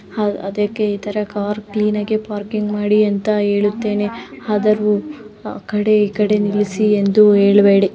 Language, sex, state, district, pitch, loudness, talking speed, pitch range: Kannada, female, Karnataka, Dharwad, 210 Hz, -17 LUFS, 120 wpm, 205-210 Hz